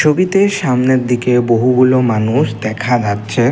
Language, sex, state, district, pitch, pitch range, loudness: Bengali, male, Assam, Kamrup Metropolitan, 125 Hz, 115-130 Hz, -13 LUFS